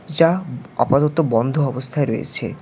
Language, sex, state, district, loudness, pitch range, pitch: Bengali, male, West Bengal, Alipurduar, -19 LUFS, 130-160 Hz, 145 Hz